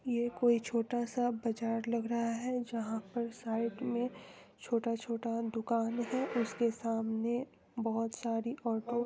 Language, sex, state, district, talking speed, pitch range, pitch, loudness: Hindi, female, Bihar, East Champaran, 130 wpm, 230-240 Hz, 235 Hz, -35 LUFS